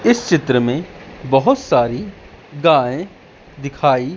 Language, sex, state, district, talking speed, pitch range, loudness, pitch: Hindi, male, Madhya Pradesh, Katni, 100 wpm, 125-175 Hz, -16 LUFS, 140 Hz